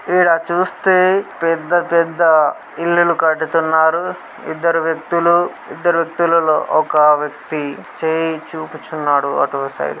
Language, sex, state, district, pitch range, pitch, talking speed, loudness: Telugu, male, Telangana, Karimnagar, 155-170 Hz, 165 Hz, 85 wpm, -16 LUFS